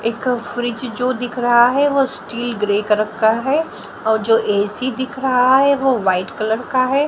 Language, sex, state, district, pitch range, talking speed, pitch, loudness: Hindi, female, Haryana, Jhajjar, 220-260 Hz, 195 wpm, 240 Hz, -17 LUFS